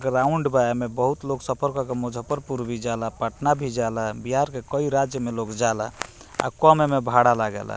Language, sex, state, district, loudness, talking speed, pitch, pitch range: Bhojpuri, male, Bihar, Muzaffarpur, -23 LUFS, 200 wpm, 125 Hz, 115-135 Hz